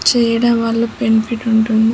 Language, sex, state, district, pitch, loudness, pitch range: Telugu, female, Andhra Pradesh, Chittoor, 230 Hz, -15 LUFS, 225-235 Hz